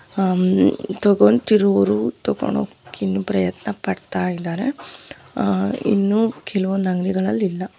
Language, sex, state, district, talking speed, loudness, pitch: Kannada, female, Karnataka, Dharwad, 70 wpm, -20 LUFS, 185 Hz